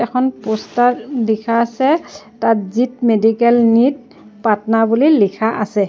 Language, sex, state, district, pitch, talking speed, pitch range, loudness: Assamese, female, Assam, Sonitpur, 230 Hz, 110 wpm, 220-245 Hz, -15 LUFS